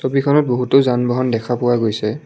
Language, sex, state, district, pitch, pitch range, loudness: Assamese, male, Assam, Kamrup Metropolitan, 125 Hz, 120-135 Hz, -16 LUFS